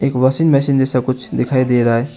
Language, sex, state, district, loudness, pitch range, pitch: Hindi, male, West Bengal, Alipurduar, -15 LUFS, 125-135 Hz, 130 Hz